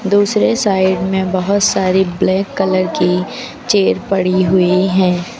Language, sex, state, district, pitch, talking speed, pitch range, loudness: Hindi, female, Uttar Pradesh, Lucknow, 190 Hz, 135 wpm, 185-200 Hz, -14 LUFS